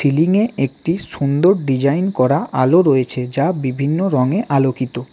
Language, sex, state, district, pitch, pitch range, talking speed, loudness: Bengali, male, West Bengal, Cooch Behar, 140 Hz, 130-175 Hz, 140 wpm, -16 LUFS